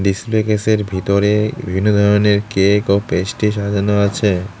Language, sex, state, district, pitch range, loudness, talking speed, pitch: Bengali, male, West Bengal, Cooch Behar, 100-105 Hz, -16 LUFS, 130 wpm, 100 Hz